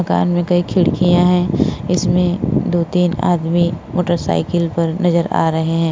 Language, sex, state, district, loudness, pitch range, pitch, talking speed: Hindi, female, Uttar Pradesh, Etah, -16 LUFS, 170-180 Hz, 175 Hz, 140 wpm